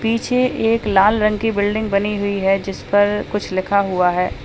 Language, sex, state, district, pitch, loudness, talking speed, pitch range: Hindi, male, Uttar Pradesh, Lalitpur, 205 Hz, -18 LUFS, 200 wpm, 195-220 Hz